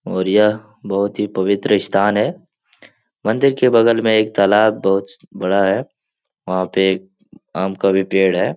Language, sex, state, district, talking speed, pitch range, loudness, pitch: Hindi, male, Bihar, Jahanabad, 160 wpm, 95-110 Hz, -17 LUFS, 100 Hz